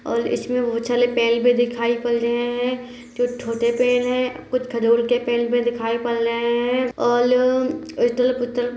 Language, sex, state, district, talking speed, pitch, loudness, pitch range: Hindi, female, Uttar Pradesh, Hamirpur, 180 wpm, 245 Hz, -20 LUFS, 235-250 Hz